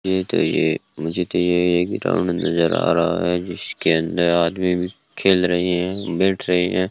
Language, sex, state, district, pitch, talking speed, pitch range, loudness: Hindi, male, Rajasthan, Bikaner, 90 Hz, 175 wpm, 85-90 Hz, -20 LUFS